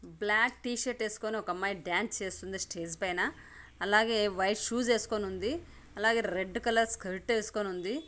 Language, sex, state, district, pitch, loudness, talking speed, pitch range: Telugu, female, Andhra Pradesh, Anantapur, 210 Hz, -32 LUFS, 125 wpm, 190-230 Hz